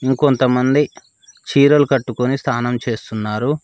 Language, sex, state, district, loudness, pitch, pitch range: Telugu, male, Telangana, Mahabubabad, -17 LUFS, 130 Hz, 120-140 Hz